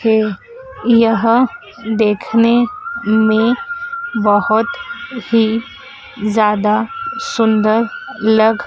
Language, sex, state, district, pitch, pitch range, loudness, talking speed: Hindi, female, Madhya Pradesh, Dhar, 230 Hz, 220-280 Hz, -15 LUFS, 60 wpm